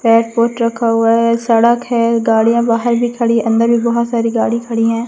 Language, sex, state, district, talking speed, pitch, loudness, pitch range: Hindi, female, Madhya Pradesh, Umaria, 190 wpm, 230 Hz, -14 LUFS, 230-235 Hz